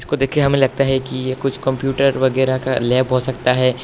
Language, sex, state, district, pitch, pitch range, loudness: Hindi, male, Assam, Hailakandi, 130 Hz, 130-135 Hz, -17 LUFS